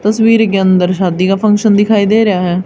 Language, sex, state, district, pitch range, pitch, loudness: Hindi, female, Haryana, Charkhi Dadri, 185-215 Hz, 200 Hz, -11 LUFS